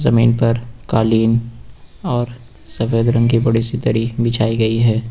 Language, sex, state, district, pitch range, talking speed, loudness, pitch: Hindi, male, Uttar Pradesh, Lucknow, 115-120 Hz, 155 wpm, -17 LUFS, 115 Hz